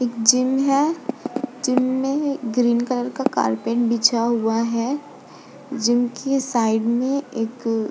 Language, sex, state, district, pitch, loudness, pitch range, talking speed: Hindi, female, Uttar Pradesh, Budaun, 245 Hz, -21 LUFS, 230-275 Hz, 135 wpm